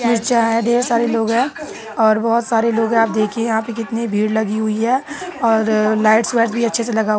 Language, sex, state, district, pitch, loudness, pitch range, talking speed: Hindi, female, Uttar Pradesh, Hamirpur, 230 Hz, -17 LUFS, 220-235 Hz, 225 wpm